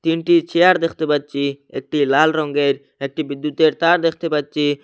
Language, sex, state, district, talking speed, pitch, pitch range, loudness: Bengali, male, Assam, Hailakandi, 150 wpm, 150 Hz, 145-165 Hz, -18 LUFS